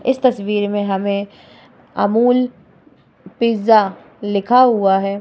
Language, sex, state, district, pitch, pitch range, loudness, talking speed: Hindi, female, Bihar, Vaishali, 205 Hz, 200-245 Hz, -16 LUFS, 105 wpm